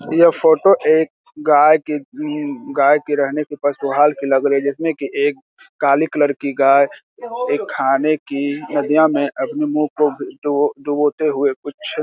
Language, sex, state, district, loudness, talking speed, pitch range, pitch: Hindi, male, Bihar, Jamui, -17 LUFS, 155 wpm, 140-155 Hz, 145 Hz